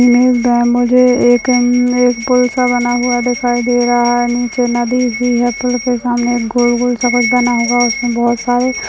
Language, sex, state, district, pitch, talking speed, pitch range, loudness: Hindi, male, Maharashtra, Nagpur, 245 Hz, 190 wpm, 240-245 Hz, -13 LUFS